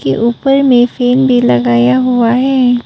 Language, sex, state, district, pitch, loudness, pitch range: Hindi, female, Arunachal Pradesh, Papum Pare, 245 Hz, -10 LUFS, 230-255 Hz